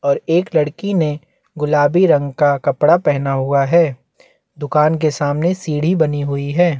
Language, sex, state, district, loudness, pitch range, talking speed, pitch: Hindi, male, Chhattisgarh, Bastar, -16 LUFS, 145-170 Hz, 160 wpm, 150 Hz